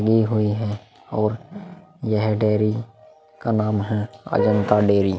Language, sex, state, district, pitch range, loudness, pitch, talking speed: Hindi, male, Uttar Pradesh, Muzaffarnagar, 105-125 Hz, -22 LUFS, 110 Hz, 140 wpm